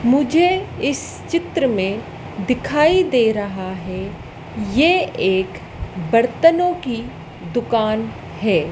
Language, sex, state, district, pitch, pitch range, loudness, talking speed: Hindi, female, Madhya Pradesh, Dhar, 230 Hz, 195-305 Hz, -19 LUFS, 95 wpm